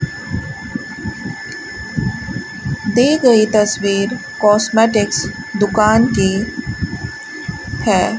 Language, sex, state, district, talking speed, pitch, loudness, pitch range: Hindi, female, Rajasthan, Bikaner, 50 wpm, 220 Hz, -17 LUFS, 210-250 Hz